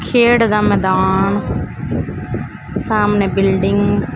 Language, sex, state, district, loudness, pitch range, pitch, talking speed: Punjabi, female, Punjab, Fazilka, -16 LUFS, 195-210 Hz, 200 Hz, 85 wpm